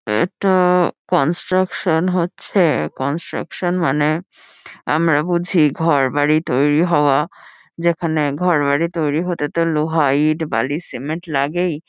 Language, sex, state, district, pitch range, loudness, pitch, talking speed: Bengali, female, West Bengal, Kolkata, 145-175 Hz, -18 LUFS, 160 Hz, 100 wpm